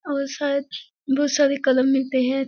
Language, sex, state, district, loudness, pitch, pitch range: Hindi, female, Bihar, Kishanganj, -21 LUFS, 275 Hz, 270-285 Hz